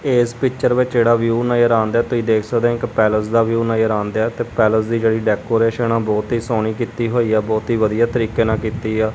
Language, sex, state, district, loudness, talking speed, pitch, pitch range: Punjabi, male, Punjab, Kapurthala, -17 LUFS, 250 wpm, 115 Hz, 110-120 Hz